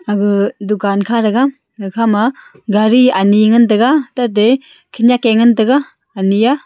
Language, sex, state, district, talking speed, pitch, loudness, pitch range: Wancho, female, Arunachal Pradesh, Longding, 155 wpm, 225 Hz, -13 LUFS, 210-245 Hz